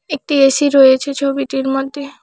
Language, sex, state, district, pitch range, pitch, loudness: Bengali, female, West Bengal, Alipurduar, 270-285 Hz, 275 Hz, -14 LUFS